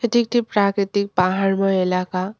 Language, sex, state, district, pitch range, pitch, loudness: Bengali, female, West Bengal, Cooch Behar, 185-210 Hz, 195 Hz, -20 LUFS